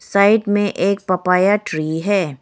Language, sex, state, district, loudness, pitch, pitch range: Hindi, female, Arunachal Pradesh, Lower Dibang Valley, -17 LUFS, 195 Hz, 180-205 Hz